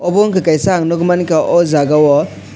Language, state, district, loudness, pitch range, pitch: Kokborok, Tripura, West Tripura, -12 LUFS, 150-180 Hz, 170 Hz